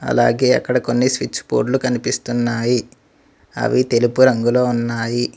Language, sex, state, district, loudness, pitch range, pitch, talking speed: Telugu, male, Telangana, Mahabubabad, -17 LUFS, 120-125 Hz, 120 Hz, 110 wpm